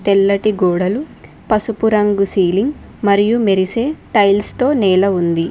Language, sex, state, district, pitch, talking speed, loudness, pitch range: Telugu, female, Telangana, Mahabubabad, 200 Hz, 120 wpm, -15 LUFS, 190-220 Hz